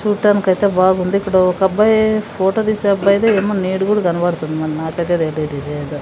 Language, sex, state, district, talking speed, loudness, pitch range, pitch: Telugu, female, Andhra Pradesh, Sri Satya Sai, 160 wpm, -16 LUFS, 170-205 Hz, 190 Hz